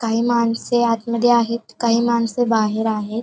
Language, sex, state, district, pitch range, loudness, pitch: Marathi, female, Maharashtra, Pune, 225-235 Hz, -19 LUFS, 230 Hz